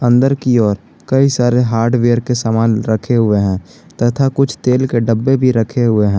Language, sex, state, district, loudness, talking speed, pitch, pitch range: Hindi, male, Jharkhand, Garhwa, -14 LUFS, 195 wpm, 120 Hz, 110-125 Hz